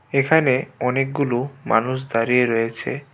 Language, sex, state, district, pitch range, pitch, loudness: Bengali, male, Tripura, West Tripura, 120-135 Hz, 130 Hz, -20 LUFS